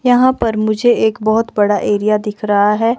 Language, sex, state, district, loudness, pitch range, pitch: Hindi, female, Himachal Pradesh, Shimla, -14 LUFS, 210-230 Hz, 215 Hz